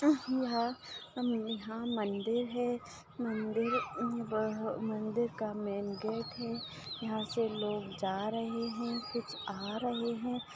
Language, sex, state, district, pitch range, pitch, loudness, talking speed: Hindi, female, Maharashtra, Solapur, 215-240 Hz, 230 Hz, -36 LUFS, 115 wpm